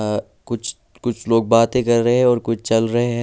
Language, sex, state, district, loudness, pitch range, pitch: Hindi, male, Delhi, New Delhi, -18 LUFS, 115-120 Hz, 115 Hz